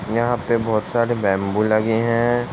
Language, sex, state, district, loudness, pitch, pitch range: Hindi, male, Uttar Pradesh, Ghazipur, -19 LUFS, 115 Hz, 110-120 Hz